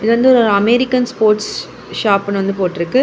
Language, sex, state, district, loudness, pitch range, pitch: Tamil, female, Tamil Nadu, Kanyakumari, -14 LUFS, 195-240 Hz, 210 Hz